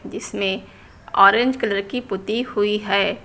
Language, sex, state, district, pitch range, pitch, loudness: Hindi, female, Uttar Pradesh, Lucknow, 200-230 Hz, 205 Hz, -20 LUFS